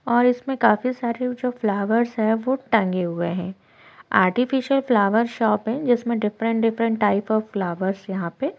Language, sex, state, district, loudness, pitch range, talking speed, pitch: Hindi, female, Chhattisgarh, Korba, -22 LUFS, 200-245 Hz, 160 wpm, 225 Hz